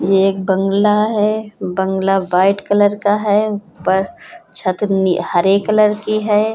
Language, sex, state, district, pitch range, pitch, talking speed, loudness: Hindi, female, Uttar Pradesh, Hamirpur, 190-210 Hz, 205 Hz, 145 wpm, -16 LUFS